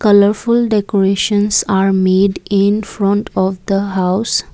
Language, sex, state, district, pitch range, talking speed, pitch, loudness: English, female, Assam, Kamrup Metropolitan, 195-210 Hz, 120 wpm, 200 Hz, -14 LUFS